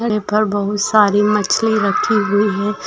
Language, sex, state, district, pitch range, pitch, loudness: Hindi, female, Bihar, Saran, 205-215 Hz, 210 Hz, -15 LUFS